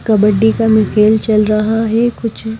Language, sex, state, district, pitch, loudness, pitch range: Hindi, female, Himachal Pradesh, Shimla, 220 Hz, -13 LUFS, 215-225 Hz